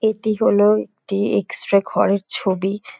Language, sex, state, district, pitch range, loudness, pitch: Bengali, female, West Bengal, Dakshin Dinajpur, 195-215 Hz, -19 LUFS, 205 Hz